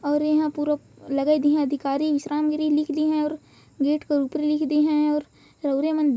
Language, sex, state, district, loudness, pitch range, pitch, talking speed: Hindi, male, Chhattisgarh, Jashpur, -23 LUFS, 290-305 Hz, 300 Hz, 225 wpm